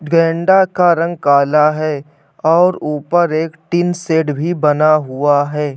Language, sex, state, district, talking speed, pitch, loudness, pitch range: Hindi, male, Uttar Pradesh, Hamirpur, 145 wpm, 155 Hz, -14 LUFS, 150-170 Hz